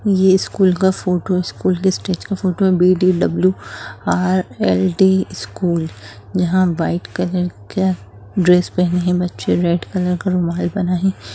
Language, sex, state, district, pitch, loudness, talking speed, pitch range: Bhojpuri, female, Bihar, Saran, 180 Hz, -17 LUFS, 145 wpm, 175-190 Hz